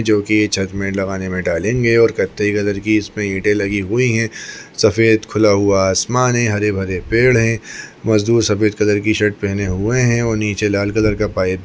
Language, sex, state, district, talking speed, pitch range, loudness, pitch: Hindi, male, Chhattisgarh, Bastar, 205 wpm, 100-110 Hz, -16 LUFS, 105 Hz